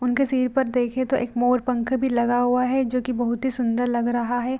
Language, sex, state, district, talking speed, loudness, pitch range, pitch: Hindi, female, Bihar, Vaishali, 250 wpm, -22 LUFS, 240-260 Hz, 250 Hz